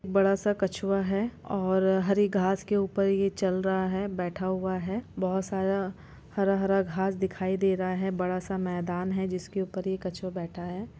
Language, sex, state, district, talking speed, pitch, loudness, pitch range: Hindi, female, Bihar, East Champaran, 180 wpm, 190 Hz, -29 LUFS, 185-195 Hz